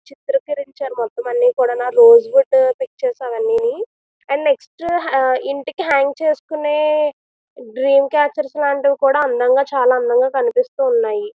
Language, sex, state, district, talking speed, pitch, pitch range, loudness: Telugu, female, Andhra Pradesh, Visakhapatnam, 120 wpm, 290 Hz, 270-450 Hz, -16 LUFS